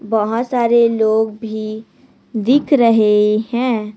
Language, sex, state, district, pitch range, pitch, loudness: Hindi, female, Chhattisgarh, Raipur, 215-235 Hz, 220 Hz, -15 LUFS